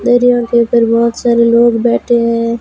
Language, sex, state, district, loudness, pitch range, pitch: Hindi, female, Rajasthan, Bikaner, -11 LUFS, 230-240 Hz, 235 Hz